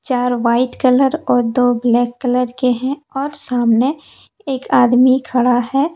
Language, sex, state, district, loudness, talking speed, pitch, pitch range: Hindi, female, Jharkhand, Deoghar, -15 LUFS, 150 wpm, 250 Hz, 245-270 Hz